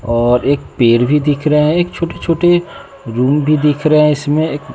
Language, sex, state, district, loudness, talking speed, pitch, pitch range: Hindi, male, Bihar, West Champaran, -13 LUFS, 200 wpm, 150 Hz, 125-155 Hz